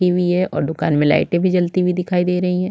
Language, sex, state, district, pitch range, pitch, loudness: Hindi, female, Chhattisgarh, Sukma, 175-180 Hz, 180 Hz, -18 LUFS